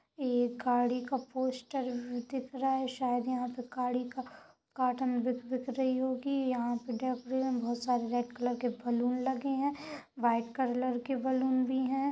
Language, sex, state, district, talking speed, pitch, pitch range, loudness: Hindi, female, Uttar Pradesh, Budaun, 165 wpm, 255 Hz, 245-260 Hz, -33 LUFS